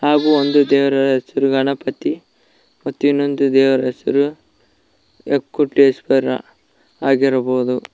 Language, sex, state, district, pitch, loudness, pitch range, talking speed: Kannada, male, Karnataka, Koppal, 135 Hz, -17 LUFS, 130-140 Hz, 85 wpm